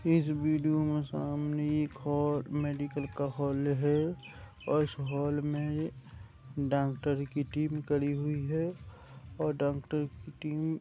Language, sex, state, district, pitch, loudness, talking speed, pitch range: Hindi, male, Uttar Pradesh, Deoria, 145 Hz, -33 LUFS, 140 wpm, 140-150 Hz